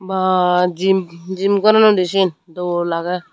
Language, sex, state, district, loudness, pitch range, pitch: Chakma, female, Tripura, Unakoti, -16 LUFS, 180-190 Hz, 185 Hz